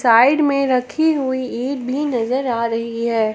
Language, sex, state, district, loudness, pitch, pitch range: Hindi, female, Jharkhand, Palamu, -18 LUFS, 255 Hz, 230-275 Hz